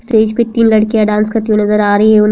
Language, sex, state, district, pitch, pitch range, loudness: Hindi, female, Bihar, Madhepura, 215 Hz, 210-225 Hz, -11 LUFS